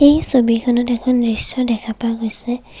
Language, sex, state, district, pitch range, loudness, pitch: Assamese, female, Assam, Kamrup Metropolitan, 230-250 Hz, -17 LUFS, 240 Hz